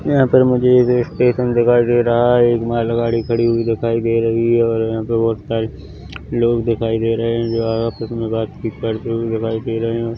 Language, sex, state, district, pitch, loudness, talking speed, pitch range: Hindi, male, Chhattisgarh, Korba, 115 Hz, -17 LUFS, 225 wpm, 115-120 Hz